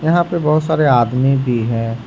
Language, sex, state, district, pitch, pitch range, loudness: Hindi, male, Jharkhand, Ranchi, 135 Hz, 120-160 Hz, -15 LUFS